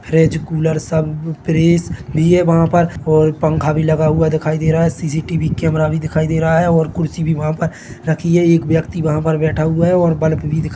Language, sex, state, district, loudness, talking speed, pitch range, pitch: Hindi, male, Chhattisgarh, Bilaspur, -15 LUFS, 230 wpm, 155-165 Hz, 160 Hz